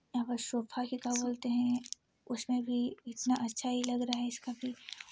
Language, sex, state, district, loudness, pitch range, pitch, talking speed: Hindi, female, Chhattisgarh, Sarguja, -35 LUFS, 240-250 Hz, 245 Hz, 95 wpm